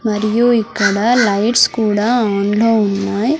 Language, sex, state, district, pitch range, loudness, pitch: Telugu, female, Andhra Pradesh, Sri Satya Sai, 205-235 Hz, -14 LUFS, 220 Hz